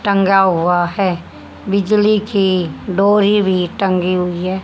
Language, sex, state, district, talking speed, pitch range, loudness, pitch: Hindi, female, Haryana, Charkhi Dadri, 130 wpm, 180-200 Hz, -15 LUFS, 190 Hz